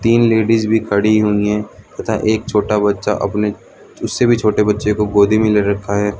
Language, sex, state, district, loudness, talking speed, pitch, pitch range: Hindi, male, Arunachal Pradesh, Lower Dibang Valley, -15 LUFS, 210 wpm, 105 Hz, 105-110 Hz